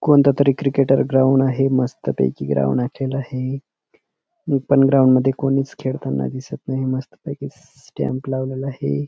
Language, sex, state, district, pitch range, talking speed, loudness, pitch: Marathi, male, Maharashtra, Dhule, 130-135 Hz, 125 wpm, -19 LUFS, 135 Hz